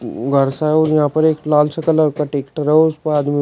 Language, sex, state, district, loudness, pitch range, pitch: Hindi, male, Uttar Pradesh, Shamli, -16 LUFS, 145-155 Hz, 150 Hz